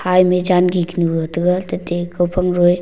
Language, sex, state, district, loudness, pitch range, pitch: Wancho, male, Arunachal Pradesh, Longding, -17 LUFS, 175-180 Hz, 180 Hz